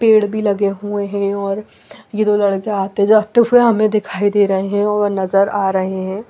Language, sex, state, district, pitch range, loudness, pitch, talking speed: Hindi, female, Bihar, Patna, 195-215 Hz, -16 LUFS, 205 Hz, 210 wpm